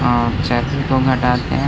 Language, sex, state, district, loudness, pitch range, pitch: Hindi, male, Bihar, Gaya, -17 LUFS, 120-135 Hz, 125 Hz